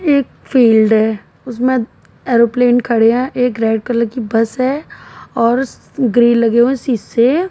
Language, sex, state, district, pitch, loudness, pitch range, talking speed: Hindi, female, Haryana, Jhajjar, 240 Hz, -14 LUFS, 230-255 Hz, 160 wpm